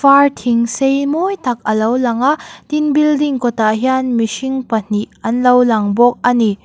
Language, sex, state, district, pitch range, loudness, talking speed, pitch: Mizo, female, Mizoram, Aizawl, 230-275 Hz, -15 LUFS, 190 wpm, 250 Hz